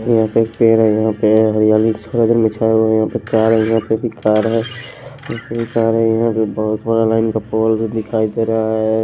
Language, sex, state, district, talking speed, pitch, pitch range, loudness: Hindi, male, Punjab, Kapurthala, 240 wpm, 110 Hz, 110-115 Hz, -15 LUFS